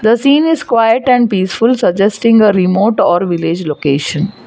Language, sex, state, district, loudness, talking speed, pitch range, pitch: English, female, Gujarat, Valsad, -12 LUFS, 160 wpm, 180-235 Hz, 210 Hz